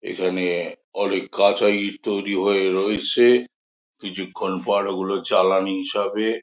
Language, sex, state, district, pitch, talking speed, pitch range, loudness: Bengali, male, West Bengal, Jhargram, 100 Hz, 110 wpm, 95-105 Hz, -21 LUFS